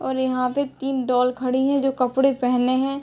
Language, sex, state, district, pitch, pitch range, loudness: Hindi, female, Uttar Pradesh, Ghazipur, 260 Hz, 250-270 Hz, -21 LUFS